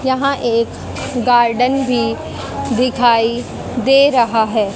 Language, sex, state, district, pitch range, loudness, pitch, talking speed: Hindi, female, Haryana, Jhajjar, 230-260 Hz, -15 LUFS, 245 Hz, 100 wpm